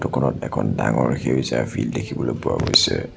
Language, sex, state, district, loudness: Assamese, male, Assam, Sonitpur, -21 LUFS